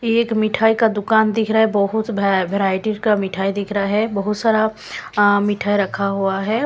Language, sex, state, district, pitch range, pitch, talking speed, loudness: Hindi, female, Punjab, Kapurthala, 200-220 Hz, 205 Hz, 190 wpm, -18 LUFS